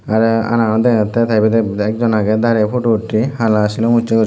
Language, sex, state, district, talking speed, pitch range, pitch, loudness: Chakma, male, Tripura, Dhalai, 170 wpm, 110-115 Hz, 110 Hz, -15 LUFS